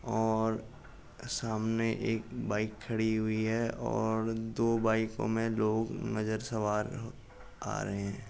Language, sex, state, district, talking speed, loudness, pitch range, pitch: Hindi, male, Uttar Pradesh, Jalaun, 125 wpm, -33 LUFS, 110-115 Hz, 110 Hz